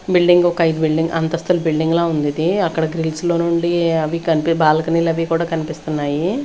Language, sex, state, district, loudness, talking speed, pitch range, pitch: Telugu, female, Andhra Pradesh, Sri Satya Sai, -17 LUFS, 175 wpm, 160-170 Hz, 165 Hz